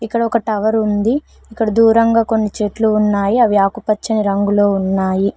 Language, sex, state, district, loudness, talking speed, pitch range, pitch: Telugu, female, Telangana, Mahabubabad, -15 LUFS, 145 wpm, 205-225 Hz, 215 Hz